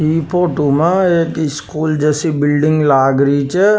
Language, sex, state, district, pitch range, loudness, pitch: Rajasthani, male, Rajasthan, Nagaur, 145-165 Hz, -14 LUFS, 155 Hz